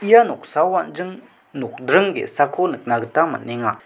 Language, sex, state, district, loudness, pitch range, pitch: Garo, male, Meghalaya, South Garo Hills, -19 LUFS, 120-185 Hz, 145 Hz